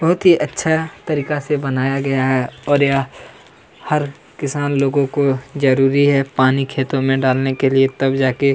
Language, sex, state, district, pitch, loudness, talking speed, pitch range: Hindi, male, Chhattisgarh, Kabirdham, 135 Hz, -17 LUFS, 170 wpm, 135-145 Hz